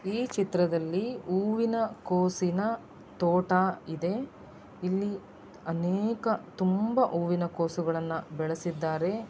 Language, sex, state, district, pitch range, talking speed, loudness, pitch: Kannada, female, Karnataka, Dakshina Kannada, 170-215 Hz, 75 wpm, -29 LUFS, 185 Hz